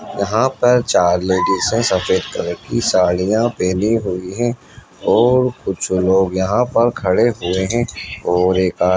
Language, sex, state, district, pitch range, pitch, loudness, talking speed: Hindi, female, Uttarakhand, Tehri Garhwal, 90-120 Hz, 95 Hz, -17 LUFS, 155 wpm